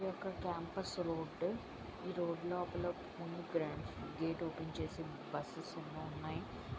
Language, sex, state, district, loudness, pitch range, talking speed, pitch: Telugu, female, Andhra Pradesh, Srikakulam, -43 LUFS, 165-180 Hz, 125 wpm, 175 Hz